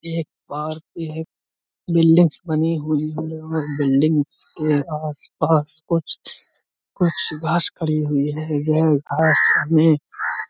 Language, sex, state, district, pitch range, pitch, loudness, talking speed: Hindi, male, Uttar Pradesh, Budaun, 150-160 Hz, 155 Hz, -19 LUFS, 130 wpm